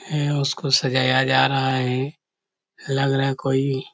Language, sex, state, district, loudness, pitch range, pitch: Hindi, male, Chhattisgarh, Korba, -21 LUFS, 130-140 Hz, 135 Hz